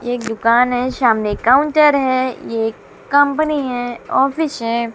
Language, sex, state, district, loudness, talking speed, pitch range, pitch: Hindi, female, Bihar, West Champaran, -16 LUFS, 160 wpm, 230-280 Hz, 250 Hz